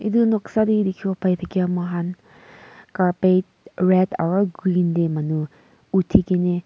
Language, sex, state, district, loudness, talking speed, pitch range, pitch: Nagamese, female, Nagaland, Kohima, -21 LUFS, 125 wpm, 175-195 Hz, 185 Hz